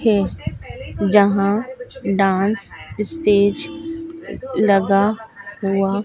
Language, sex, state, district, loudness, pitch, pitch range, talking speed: Hindi, female, Madhya Pradesh, Dhar, -19 LUFS, 205 Hz, 195-225 Hz, 60 wpm